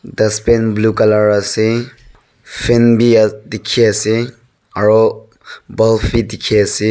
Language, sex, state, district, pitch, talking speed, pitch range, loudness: Nagamese, male, Nagaland, Dimapur, 110 Hz, 120 wpm, 105-115 Hz, -13 LUFS